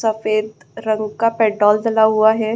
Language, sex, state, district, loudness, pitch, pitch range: Hindi, female, Bihar, Gaya, -16 LUFS, 220 Hz, 215-220 Hz